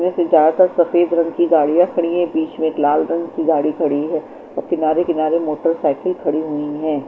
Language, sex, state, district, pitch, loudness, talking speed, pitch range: Hindi, female, Chandigarh, Chandigarh, 160 Hz, -17 LUFS, 210 wpm, 155-175 Hz